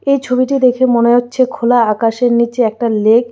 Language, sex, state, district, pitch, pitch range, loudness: Bengali, female, Tripura, West Tripura, 240 Hz, 235-255 Hz, -13 LUFS